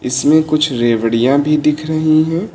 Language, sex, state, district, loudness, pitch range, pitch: Hindi, male, Uttar Pradesh, Lucknow, -14 LUFS, 125-155 Hz, 150 Hz